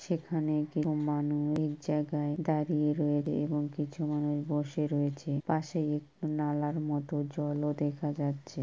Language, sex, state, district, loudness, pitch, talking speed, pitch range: Bengali, female, West Bengal, Purulia, -32 LUFS, 150 Hz, 125 wpm, 145-155 Hz